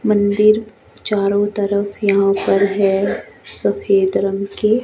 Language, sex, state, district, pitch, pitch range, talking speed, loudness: Hindi, female, Himachal Pradesh, Shimla, 205 Hz, 200-215 Hz, 125 wpm, -17 LUFS